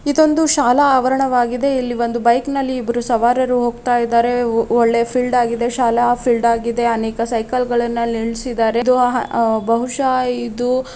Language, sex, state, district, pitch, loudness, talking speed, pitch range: Kannada, female, Karnataka, Raichur, 240 Hz, -16 LUFS, 155 wpm, 235-255 Hz